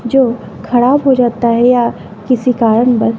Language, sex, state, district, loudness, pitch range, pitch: Hindi, female, Bihar, West Champaran, -12 LUFS, 230-250 Hz, 240 Hz